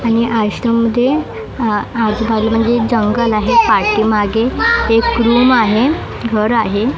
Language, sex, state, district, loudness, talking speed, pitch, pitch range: Marathi, female, Maharashtra, Mumbai Suburban, -14 LUFS, 120 wpm, 230 Hz, 220-240 Hz